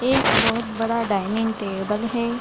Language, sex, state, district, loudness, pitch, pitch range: Hindi, female, Bihar, Gaya, -22 LUFS, 225 Hz, 210-235 Hz